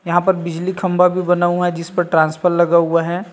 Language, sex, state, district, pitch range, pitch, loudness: Hindi, male, Chhattisgarh, Rajnandgaon, 170-180 Hz, 175 Hz, -16 LUFS